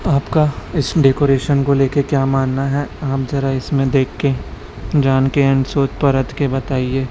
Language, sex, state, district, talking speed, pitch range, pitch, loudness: Hindi, male, Chhattisgarh, Raipur, 160 wpm, 135-140 Hz, 135 Hz, -17 LUFS